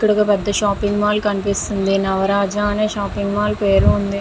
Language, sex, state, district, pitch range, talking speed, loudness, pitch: Telugu, female, Andhra Pradesh, Visakhapatnam, 200-210 Hz, 170 wpm, -18 LUFS, 205 Hz